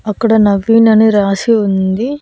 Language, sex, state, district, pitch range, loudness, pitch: Telugu, female, Andhra Pradesh, Annamaya, 200-225 Hz, -11 LUFS, 220 Hz